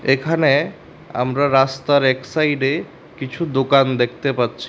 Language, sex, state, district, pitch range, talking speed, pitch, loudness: Bengali, male, Tripura, West Tripura, 130-145 Hz, 115 wpm, 135 Hz, -18 LUFS